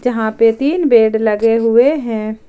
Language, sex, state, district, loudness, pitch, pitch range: Hindi, female, Jharkhand, Ranchi, -13 LUFS, 225 Hz, 220-245 Hz